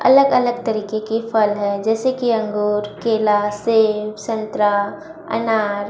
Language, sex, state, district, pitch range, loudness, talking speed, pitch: Hindi, female, Chhattisgarh, Raipur, 210-230 Hz, -19 LUFS, 130 wpm, 220 Hz